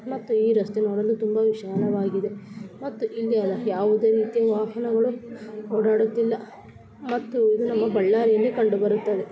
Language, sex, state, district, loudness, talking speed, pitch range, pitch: Kannada, female, Karnataka, Bellary, -23 LUFS, 115 wpm, 210-230 Hz, 220 Hz